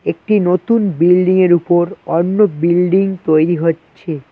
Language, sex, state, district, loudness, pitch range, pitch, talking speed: Bengali, male, West Bengal, Cooch Behar, -14 LUFS, 165-190 Hz, 175 Hz, 110 wpm